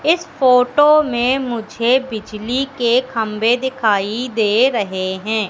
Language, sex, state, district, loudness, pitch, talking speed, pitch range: Hindi, female, Madhya Pradesh, Katni, -16 LUFS, 240 Hz, 120 wpm, 220-260 Hz